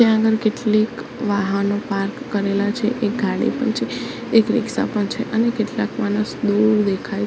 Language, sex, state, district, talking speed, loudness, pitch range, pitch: Gujarati, female, Gujarat, Gandhinagar, 165 wpm, -20 LUFS, 205-225 Hz, 215 Hz